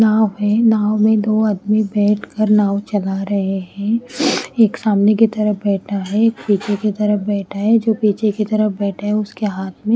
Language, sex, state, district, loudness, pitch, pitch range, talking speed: Hindi, female, Haryana, Rohtak, -17 LUFS, 210 Hz, 205-215 Hz, 205 wpm